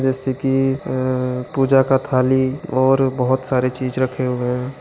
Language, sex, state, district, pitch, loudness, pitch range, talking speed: Angika, male, Bihar, Begusarai, 130 Hz, -19 LUFS, 130-135 Hz, 160 wpm